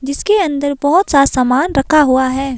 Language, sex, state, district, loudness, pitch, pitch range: Hindi, female, Himachal Pradesh, Shimla, -13 LUFS, 280 Hz, 265-305 Hz